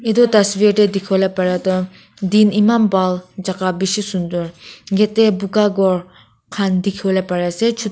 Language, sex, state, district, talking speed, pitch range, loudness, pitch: Nagamese, female, Nagaland, Kohima, 160 wpm, 185-210 Hz, -16 LUFS, 195 Hz